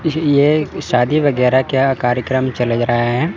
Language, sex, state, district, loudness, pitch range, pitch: Hindi, male, Chandigarh, Chandigarh, -15 LUFS, 125-150 Hz, 130 Hz